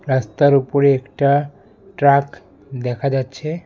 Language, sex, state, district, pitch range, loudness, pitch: Bengali, male, West Bengal, Alipurduar, 130-145 Hz, -17 LUFS, 140 Hz